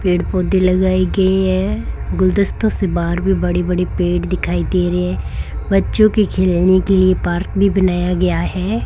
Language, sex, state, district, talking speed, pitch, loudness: Hindi, female, Rajasthan, Bikaner, 175 wpm, 180 Hz, -16 LUFS